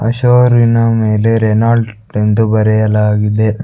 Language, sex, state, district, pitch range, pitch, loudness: Kannada, male, Karnataka, Bangalore, 110-115 Hz, 110 Hz, -11 LUFS